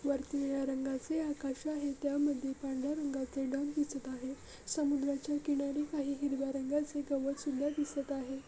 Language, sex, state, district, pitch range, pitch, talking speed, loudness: Marathi, female, Maharashtra, Dhule, 270-290 Hz, 280 Hz, 140 wpm, -36 LUFS